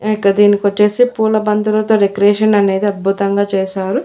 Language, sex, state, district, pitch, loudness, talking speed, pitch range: Telugu, female, Andhra Pradesh, Annamaya, 205 Hz, -13 LUFS, 150 wpm, 200-215 Hz